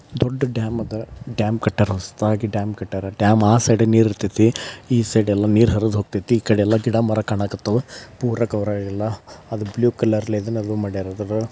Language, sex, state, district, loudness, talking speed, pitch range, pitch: Kannada, male, Karnataka, Dharwad, -20 LUFS, 160 wpm, 105-115 Hz, 110 Hz